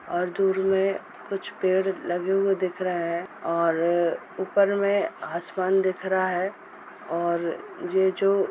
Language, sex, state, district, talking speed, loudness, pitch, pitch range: Hindi, female, Uttar Pradesh, Etah, 150 wpm, -25 LUFS, 185 Hz, 175-195 Hz